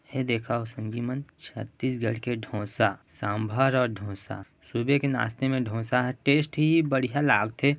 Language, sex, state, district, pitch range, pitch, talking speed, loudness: Chhattisgarhi, male, Chhattisgarh, Raigarh, 110-135 Hz, 125 Hz, 140 wpm, -27 LUFS